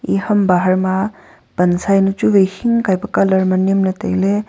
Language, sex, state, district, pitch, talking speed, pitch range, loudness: Wancho, female, Arunachal Pradesh, Longding, 195 Hz, 215 wpm, 185-200 Hz, -15 LUFS